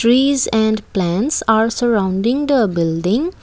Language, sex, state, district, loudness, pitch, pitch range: English, female, Assam, Kamrup Metropolitan, -16 LUFS, 225 Hz, 200-255 Hz